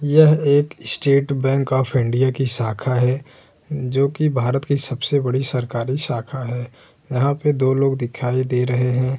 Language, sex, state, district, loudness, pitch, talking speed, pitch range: Hindi, male, Uttar Pradesh, Hamirpur, -19 LUFS, 130 Hz, 165 wpm, 125-140 Hz